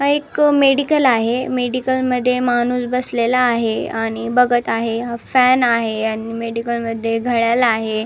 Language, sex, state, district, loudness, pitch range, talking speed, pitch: Marathi, female, Maharashtra, Nagpur, -17 LUFS, 230-255 Hz, 150 wpm, 240 Hz